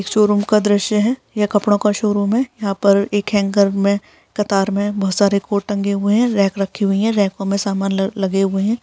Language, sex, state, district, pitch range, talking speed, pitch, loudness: Hindi, female, Bihar, Darbhanga, 200-210 Hz, 225 wpm, 205 Hz, -17 LUFS